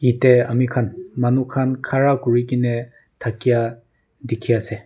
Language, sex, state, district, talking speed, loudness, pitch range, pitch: Nagamese, male, Nagaland, Dimapur, 150 wpm, -19 LUFS, 115-130 Hz, 125 Hz